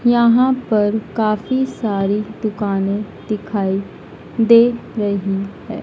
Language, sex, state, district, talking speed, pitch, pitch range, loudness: Hindi, female, Madhya Pradesh, Dhar, 95 wpm, 215 Hz, 200-230 Hz, -18 LUFS